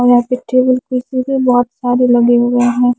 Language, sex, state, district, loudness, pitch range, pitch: Hindi, female, Himachal Pradesh, Shimla, -13 LUFS, 245-255 Hz, 245 Hz